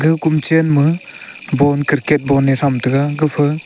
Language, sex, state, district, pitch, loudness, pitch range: Wancho, male, Arunachal Pradesh, Longding, 145 Hz, -14 LUFS, 140-155 Hz